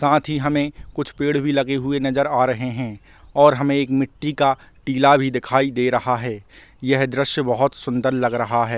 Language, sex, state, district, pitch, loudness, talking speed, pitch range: Hindi, male, Chhattisgarh, Balrampur, 135 Hz, -20 LUFS, 205 wpm, 125-140 Hz